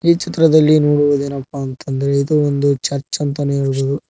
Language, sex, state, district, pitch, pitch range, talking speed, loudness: Kannada, male, Karnataka, Koppal, 140 Hz, 140-150 Hz, 145 wpm, -16 LUFS